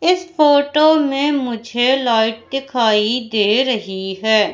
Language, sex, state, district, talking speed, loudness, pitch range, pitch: Hindi, female, Madhya Pradesh, Katni, 120 wpm, -16 LUFS, 220-285 Hz, 245 Hz